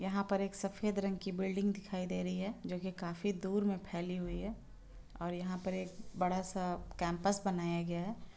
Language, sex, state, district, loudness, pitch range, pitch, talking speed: Hindi, female, Bihar, Muzaffarpur, -38 LUFS, 180-200 Hz, 190 Hz, 195 wpm